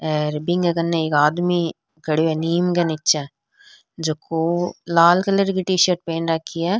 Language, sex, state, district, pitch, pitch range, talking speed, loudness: Rajasthani, female, Rajasthan, Nagaur, 170 Hz, 160-180 Hz, 160 wpm, -20 LUFS